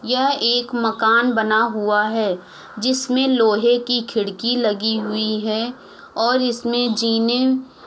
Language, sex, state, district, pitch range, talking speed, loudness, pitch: Hindi, female, Uttar Pradesh, Muzaffarnagar, 220-245 Hz, 130 wpm, -19 LUFS, 230 Hz